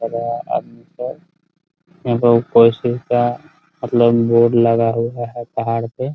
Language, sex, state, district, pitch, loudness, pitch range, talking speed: Hindi, male, Bihar, Muzaffarpur, 120 Hz, -17 LUFS, 115-130 Hz, 105 wpm